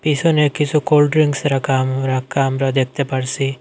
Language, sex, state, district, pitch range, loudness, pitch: Bengali, male, Assam, Hailakandi, 135-150 Hz, -17 LUFS, 135 Hz